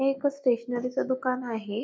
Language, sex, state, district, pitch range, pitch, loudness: Marathi, female, Maharashtra, Pune, 240-265 Hz, 250 Hz, -28 LUFS